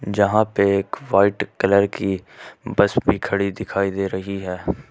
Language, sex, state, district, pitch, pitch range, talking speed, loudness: Hindi, male, Jharkhand, Ranchi, 100 Hz, 95-100 Hz, 160 wpm, -20 LUFS